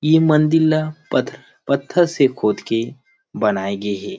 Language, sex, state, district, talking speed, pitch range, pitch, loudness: Chhattisgarhi, male, Chhattisgarh, Rajnandgaon, 155 wpm, 110-160 Hz, 140 Hz, -18 LUFS